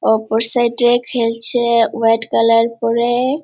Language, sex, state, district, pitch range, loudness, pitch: Bengali, female, West Bengal, Purulia, 230-240 Hz, -14 LUFS, 230 Hz